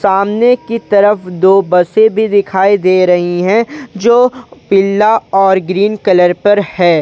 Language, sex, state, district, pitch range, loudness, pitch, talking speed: Hindi, male, Jharkhand, Ranchi, 185-220 Hz, -11 LUFS, 200 Hz, 145 wpm